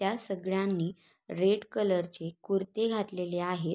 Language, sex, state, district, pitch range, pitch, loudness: Marathi, female, Maharashtra, Sindhudurg, 175-200 Hz, 190 Hz, -31 LUFS